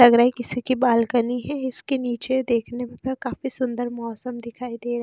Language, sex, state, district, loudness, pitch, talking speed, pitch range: Hindi, female, Himachal Pradesh, Shimla, -24 LUFS, 245 Hz, 165 wpm, 240-255 Hz